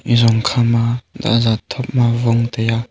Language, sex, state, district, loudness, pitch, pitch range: Wancho, male, Arunachal Pradesh, Longding, -16 LUFS, 115 Hz, 115-120 Hz